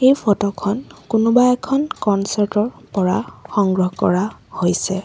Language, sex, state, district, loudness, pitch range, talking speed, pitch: Assamese, female, Assam, Sonitpur, -19 LUFS, 190-230 Hz, 130 wpm, 205 Hz